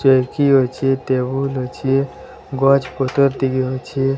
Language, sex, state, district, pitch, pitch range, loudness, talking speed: Odia, male, Odisha, Sambalpur, 135 Hz, 130-135 Hz, -18 LUFS, 115 wpm